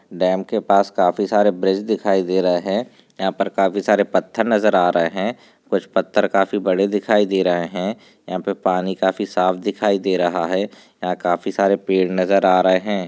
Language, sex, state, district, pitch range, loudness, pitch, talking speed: Hindi, male, Maharashtra, Nagpur, 90-100 Hz, -19 LUFS, 95 Hz, 200 wpm